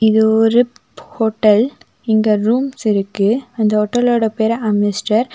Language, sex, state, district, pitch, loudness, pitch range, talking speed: Tamil, female, Tamil Nadu, Nilgiris, 220 Hz, -15 LUFS, 215-245 Hz, 125 wpm